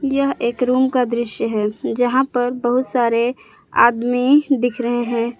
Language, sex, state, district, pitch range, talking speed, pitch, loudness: Hindi, female, Jharkhand, Palamu, 235-260 Hz, 155 wpm, 245 Hz, -18 LUFS